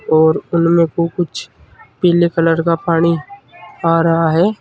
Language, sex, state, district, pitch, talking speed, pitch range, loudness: Hindi, male, Uttar Pradesh, Saharanpur, 165 Hz, 145 wpm, 160-170 Hz, -15 LUFS